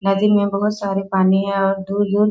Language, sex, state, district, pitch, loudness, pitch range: Hindi, female, Bihar, East Champaran, 195 Hz, -18 LUFS, 195-205 Hz